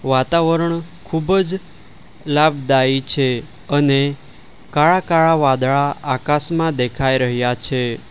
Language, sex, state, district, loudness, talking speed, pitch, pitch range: Gujarati, male, Gujarat, Valsad, -17 LUFS, 95 wpm, 140 Hz, 130-165 Hz